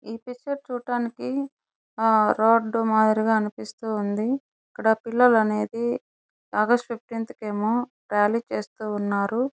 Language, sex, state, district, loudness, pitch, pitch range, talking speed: Telugu, male, Andhra Pradesh, Chittoor, -24 LUFS, 225 Hz, 215-245 Hz, 105 wpm